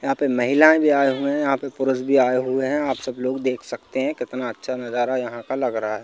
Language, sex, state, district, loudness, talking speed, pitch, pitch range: Hindi, male, Madhya Pradesh, Bhopal, -21 LUFS, 280 wpm, 130 Hz, 125-140 Hz